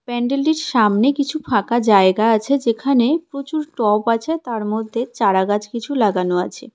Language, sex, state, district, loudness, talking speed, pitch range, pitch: Bengali, female, West Bengal, Cooch Behar, -18 LUFS, 140 wpm, 215-275 Hz, 235 Hz